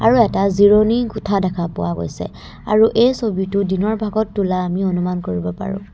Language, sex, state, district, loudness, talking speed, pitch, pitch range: Assamese, female, Assam, Kamrup Metropolitan, -18 LUFS, 170 wpm, 200 Hz, 180-215 Hz